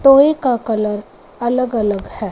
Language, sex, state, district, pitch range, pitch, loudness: Hindi, female, Punjab, Fazilka, 210-255 Hz, 235 Hz, -17 LUFS